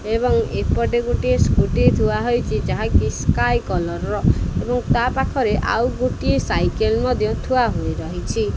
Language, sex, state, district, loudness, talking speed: Odia, male, Odisha, Khordha, -20 LUFS, 140 wpm